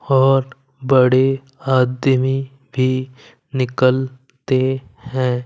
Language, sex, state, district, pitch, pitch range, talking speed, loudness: Hindi, male, Punjab, Kapurthala, 130 Hz, 130-135 Hz, 65 wpm, -18 LUFS